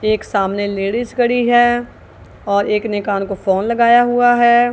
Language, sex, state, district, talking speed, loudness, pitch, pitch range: Hindi, female, Punjab, Kapurthala, 175 wpm, -15 LUFS, 225 Hz, 200-240 Hz